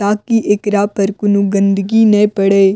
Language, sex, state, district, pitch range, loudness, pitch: Maithili, female, Bihar, Madhepura, 195-210 Hz, -13 LUFS, 205 Hz